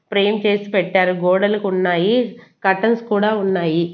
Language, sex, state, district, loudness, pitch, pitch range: Telugu, female, Andhra Pradesh, Annamaya, -18 LUFS, 200 Hz, 185-215 Hz